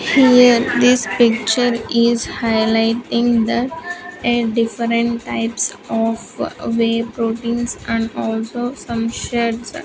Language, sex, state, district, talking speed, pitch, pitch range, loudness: English, female, Andhra Pradesh, Sri Satya Sai, 95 wpm, 235 Hz, 230-240 Hz, -17 LUFS